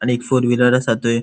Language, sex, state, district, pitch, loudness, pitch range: Konkani, male, Goa, North and South Goa, 120 Hz, -16 LUFS, 115-125 Hz